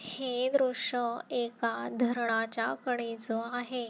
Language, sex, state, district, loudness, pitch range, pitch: Marathi, female, Maharashtra, Nagpur, -32 LUFS, 230-250 Hz, 240 Hz